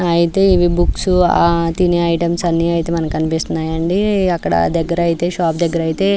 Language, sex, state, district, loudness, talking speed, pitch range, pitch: Telugu, female, Andhra Pradesh, Anantapur, -16 LUFS, 155 wpm, 165-175 Hz, 170 Hz